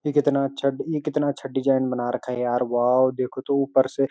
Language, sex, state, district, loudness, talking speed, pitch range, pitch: Hindi, male, Uttarakhand, Uttarkashi, -23 LUFS, 235 wpm, 125-140 Hz, 135 Hz